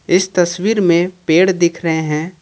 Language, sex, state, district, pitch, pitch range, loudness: Hindi, male, Jharkhand, Ranchi, 175 Hz, 165-185 Hz, -15 LUFS